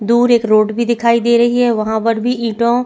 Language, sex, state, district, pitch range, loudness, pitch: Hindi, female, Chhattisgarh, Sukma, 225-240 Hz, -14 LUFS, 235 Hz